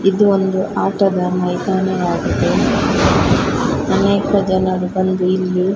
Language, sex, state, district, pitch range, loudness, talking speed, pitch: Kannada, female, Karnataka, Dakshina Kannada, 185-195 Hz, -16 LUFS, 95 wpm, 190 Hz